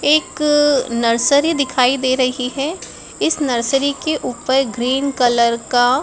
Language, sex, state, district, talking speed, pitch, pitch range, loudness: Hindi, female, Madhya Pradesh, Dhar, 130 wpm, 265 Hz, 250-285 Hz, -16 LUFS